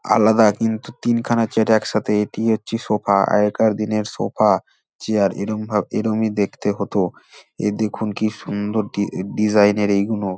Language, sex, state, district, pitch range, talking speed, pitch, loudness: Bengali, male, West Bengal, Dakshin Dinajpur, 105-110 Hz, 135 wpm, 105 Hz, -19 LUFS